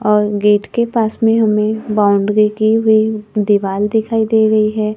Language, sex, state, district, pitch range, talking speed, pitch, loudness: Hindi, female, Maharashtra, Gondia, 210-220 Hz, 170 wpm, 215 Hz, -14 LUFS